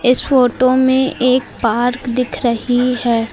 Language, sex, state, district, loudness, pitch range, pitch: Hindi, female, Uttar Pradesh, Lucknow, -15 LUFS, 240-255 Hz, 250 Hz